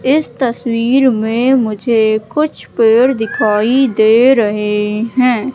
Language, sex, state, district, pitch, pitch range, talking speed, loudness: Hindi, female, Madhya Pradesh, Katni, 235 Hz, 220-260 Hz, 110 wpm, -13 LUFS